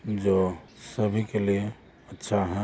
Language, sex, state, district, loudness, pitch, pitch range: Hindi, male, Jharkhand, Jamtara, -27 LUFS, 105 Hz, 95-105 Hz